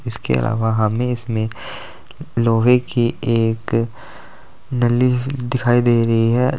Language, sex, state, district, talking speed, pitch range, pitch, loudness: Hindi, male, Uttar Pradesh, Saharanpur, 110 wpm, 115-125 Hz, 120 Hz, -18 LUFS